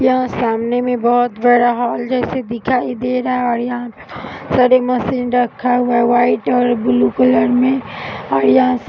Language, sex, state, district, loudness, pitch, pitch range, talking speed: Hindi, female, Uttar Pradesh, Gorakhpur, -15 LUFS, 245 Hz, 240-250 Hz, 180 wpm